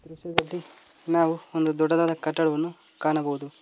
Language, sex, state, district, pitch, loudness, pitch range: Kannada, male, Karnataka, Koppal, 160 Hz, -26 LUFS, 155-165 Hz